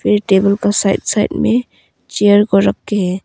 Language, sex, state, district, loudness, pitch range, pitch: Hindi, female, Arunachal Pradesh, Longding, -14 LUFS, 195-210 Hz, 205 Hz